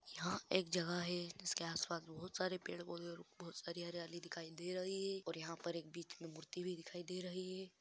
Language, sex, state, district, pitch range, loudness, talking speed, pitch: Hindi, female, Bihar, Vaishali, 170-185 Hz, -45 LUFS, 225 wpm, 175 Hz